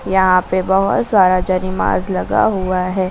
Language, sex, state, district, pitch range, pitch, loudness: Hindi, female, Jharkhand, Ranchi, 180-190 Hz, 185 Hz, -15 LUFS